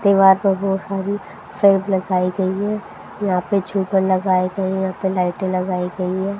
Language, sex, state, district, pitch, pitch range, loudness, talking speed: Hindi, female, Haryana, Jhajjar, 190 Hz, 185-195 Hz, -19 LUFS, 180 wpm